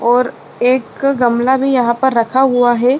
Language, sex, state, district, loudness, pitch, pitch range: Hindi, female, Bihar, Sitamarhi, -14 LUFS, 250 Hz, 240-265 Hz